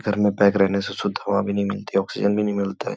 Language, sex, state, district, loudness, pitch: Hindi, male, Uttar Pradesh, Gorakhpur, -22 LUFS, 100 Hz